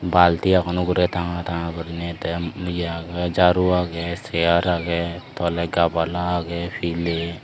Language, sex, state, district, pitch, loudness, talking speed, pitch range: Chakma, male, Tripura, Dhalai, 85 Hz, -22 LUFS, 120 wpm, 85-90 Hz